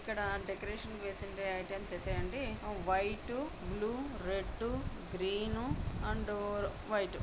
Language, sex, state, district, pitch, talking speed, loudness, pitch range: Telugu, female, Andhra Pradesh, Anantapur, 200 Hz, 125 wpm, -38 LUFS, 195-210 Hz